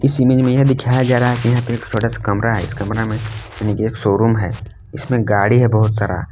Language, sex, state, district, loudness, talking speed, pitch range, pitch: Hindi, male, Jharkhand, Palamu, -16 LUFS, 245 wpm, 105-125 Hz, 115 Hz